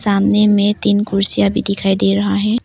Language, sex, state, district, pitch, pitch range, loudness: Hindi, female, Arunachal Pradesh, Papum Pare, 205 Hz, 195-210 Hz, -14 LUFS